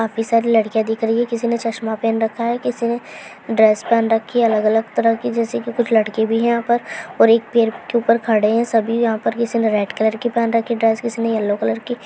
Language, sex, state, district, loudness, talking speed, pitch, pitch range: Hindi, female, West Bengal, Jhargram, -18 LUFS, 260 wpm, 230 Hz, 220-235 Hz